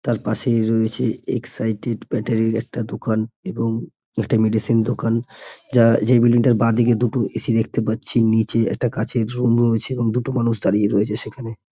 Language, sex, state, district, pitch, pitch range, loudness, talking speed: Bengali, male, West Bengal, North 24 Parganas, 115 Hz, 110-120 Hz, -20 LUFS, 180 wpm